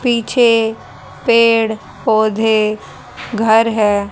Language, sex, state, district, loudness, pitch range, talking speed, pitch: Hindi, female, Haryana, Rohtak, -14 LUFS, 215-230 Hz, 75 wpm, 220 Hz